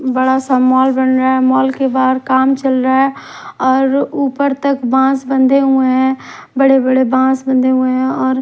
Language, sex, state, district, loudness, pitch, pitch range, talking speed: Hindi, female, Odisha, Khordha, -13 LUFS, 260 Hz, 260-270 Hz, 185 wpm